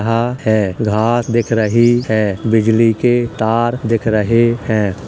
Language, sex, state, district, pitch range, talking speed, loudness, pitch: Hindi, male, Uttar Pradesh, Hamirpur, 110-120 Hz, 165 wpm, -15 LUFS, 115 Hz